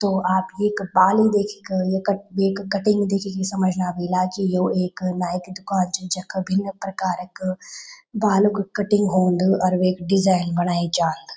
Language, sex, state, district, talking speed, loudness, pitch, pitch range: Garhwali, female, Uttarakhand, Tehri Garhwal, 170 wpm, -21 LUFS, 190 Hz, 185-200 Hz